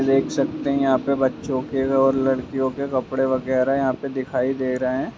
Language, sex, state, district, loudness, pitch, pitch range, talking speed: Hindi, male, Bihar, Lakhisarai, -22 LUFS, 135 Hz, 130-135 Hz, 185 wpm